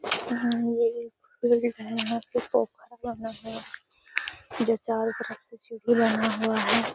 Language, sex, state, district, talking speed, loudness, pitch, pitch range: Hindi, female, Bihar, Gaya, 140 wpm, -27 LUFS, 230 Hz, 225-240 Hz